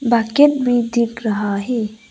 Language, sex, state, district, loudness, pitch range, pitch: Hindi, female, Arunachal Pradesh, Lower Dibang Valley, -17 LUFS, 220-245 Hz, 235 Hz